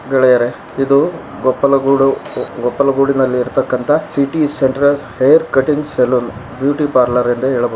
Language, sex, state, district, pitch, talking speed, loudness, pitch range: Kannada, male, Karnataka, Gulbarga, 135 Hz, 100 wpm, -14 LUFS, 125-140 Hz